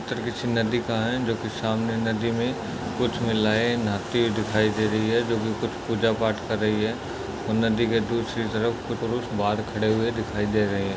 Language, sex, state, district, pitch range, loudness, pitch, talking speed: Hindi, male, Maharashtra, Solapur, 110-115 Hz, -25 LUFS, 115 Hz, 195 wpm